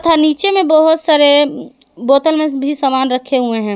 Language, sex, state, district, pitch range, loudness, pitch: Hindi, female, Jharkhand, Garhwa, 265-315 Hz, -12 LUFS, 290 Hz